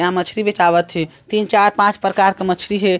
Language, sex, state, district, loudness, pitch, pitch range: Chhattisgarhi, male, Chhattisgarh, Sarguja, -16 LUFS, 195 Hz, 175-205 Hz